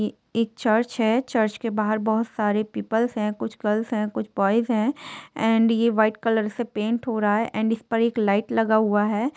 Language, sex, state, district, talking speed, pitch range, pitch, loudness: Hindi, female, Jharkhand, Sahebganj, 210 wpm, 215-230 Hz, 220 Hz, -23 LUFS